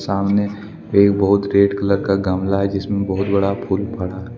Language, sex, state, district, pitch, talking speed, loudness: Hindi, male, Jharkhand, Deoghar, 100 Hz, 190 wpm, -18 LUFS